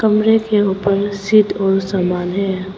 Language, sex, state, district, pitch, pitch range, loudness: Hindi, female, Arunachal Pradesh, Papum Pare, 195 Hz, 190-210 Hz, -16 LUFS